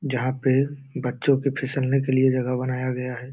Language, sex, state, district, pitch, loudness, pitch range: Hindi, male, Bihar, Jamui, 130 Hz, -24 LUFS, 130-135 Hz